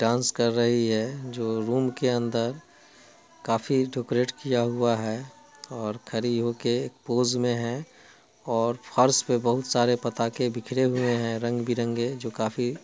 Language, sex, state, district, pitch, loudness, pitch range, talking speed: Hindi, male, Bihar, Muzaffarpur, 120 Hz, -26 LUFS, 115-125 Hz, 150 wpm